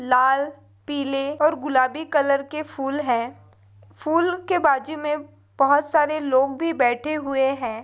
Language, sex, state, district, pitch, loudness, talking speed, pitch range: Hindi, female, Maharashtra, Dhule, 275 Hz, -22 LUFS, 145 wpm, 255-305 Hz